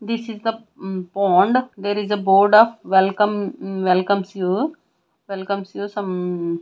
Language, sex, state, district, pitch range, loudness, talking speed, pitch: English, female, Punjab, Kapurthala, 190-210 Hz, -19 LUFS, 135 wpm, 200 Hz